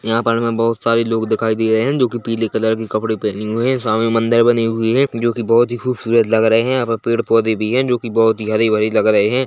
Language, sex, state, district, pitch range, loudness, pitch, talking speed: Hindi, male, Chhattisgarh, Bilaspur, 110-115 Hz, -16 LUFS, 115 Hz, 290 wpm